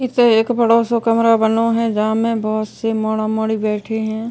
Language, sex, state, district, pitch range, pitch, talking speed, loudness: Hindi, female, Uttar Pradesh, Ghazipur, 220-230 Hz, 225 Hz, 195 wpm, -17 LUFS